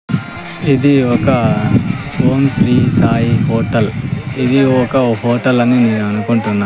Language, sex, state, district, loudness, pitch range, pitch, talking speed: Telugu, male, Andhra Pradesh, Sri Satya Sai, -13 LUFS, 115-135 Hz, 125 Hz, 110 wpm